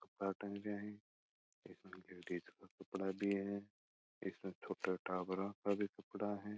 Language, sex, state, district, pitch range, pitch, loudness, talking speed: Marwari, male, Rajasthan, Churu, 95-100 Hz, 100 Hz, -44 LUFS, 75 wpm